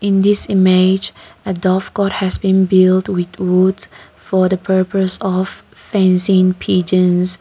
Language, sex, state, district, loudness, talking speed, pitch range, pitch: English, female, Nagaland, Kohima, -14 LUFS, 120 wpm, 185-190 Hz, 190 Hz